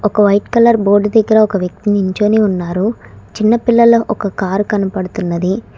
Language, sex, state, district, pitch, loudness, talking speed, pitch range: Telugu, female, Telangana, Hyderabad, 205 Hz, -13 LUFS, 135 wpm, 195-220 Hz